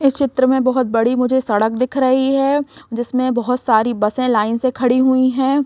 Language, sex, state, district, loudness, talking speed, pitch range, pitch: Hindi, female, Chhattisgarh, Raigarh, -16 LUFS, 200 wpm, 240-260 Hz, 255 Hz